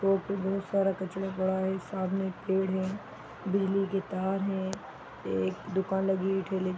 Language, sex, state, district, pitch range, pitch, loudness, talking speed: Hindi, female, Bihar, East Champaran, 190-195 Hz, 190 Hz, -31 LUFS, 185 wpm